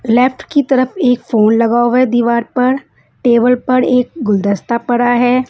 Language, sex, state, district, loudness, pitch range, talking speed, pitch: Hindi, female, Punjab, Kapurthala, -13 LUFS, 235-255 Hz, 175 wpm, 245 Hz